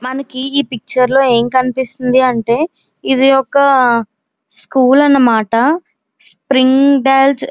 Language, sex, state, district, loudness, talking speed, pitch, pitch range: Telugu, female, Andhra Pradesh, Visakhapatnam, -12 LUFS, 105 wpm, 260 Hz, 245-275 Hz